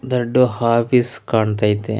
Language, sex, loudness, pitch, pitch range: Kannada, male, -17 LUFS, 115 Hz, 110-125 Hz